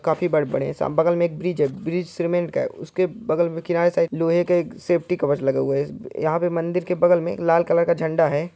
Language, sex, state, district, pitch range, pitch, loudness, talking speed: Hindi, male, Chhattisgarh, Bilaspur, 160-175 Hz, 170 Hz, -22 LUFS, 260 wpm